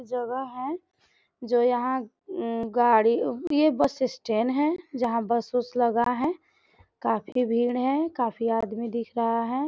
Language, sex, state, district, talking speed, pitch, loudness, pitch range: Hindi, female, Bihar, Gopalganj, 130 wpm, 245 Hz, -26 LUFS, 235-270 Hz